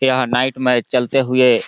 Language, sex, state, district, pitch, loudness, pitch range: Hindi, male, Chhattisgarh, Balrampur, 125 Hz, -16 LUFS, 125-130 Hz